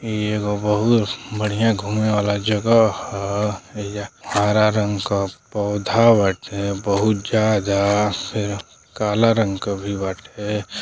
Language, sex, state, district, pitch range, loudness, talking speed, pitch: Bhojpuri, male, Uttar Pradesh, Deoria, 100-110 Hz, -20 LUFS, 120 wpm, 105 Hz